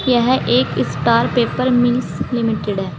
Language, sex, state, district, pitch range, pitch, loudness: Hindi, female, Uttar Pradesh, Saharanpur, 210-250 Hz, 240 Hz, -17 LUFS